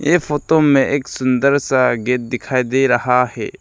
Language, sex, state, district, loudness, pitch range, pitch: Hindi, male, Arunachal Pradesh, Lower Dibang Valley, -16 LUFS, 125-145 Hz, 130 Hz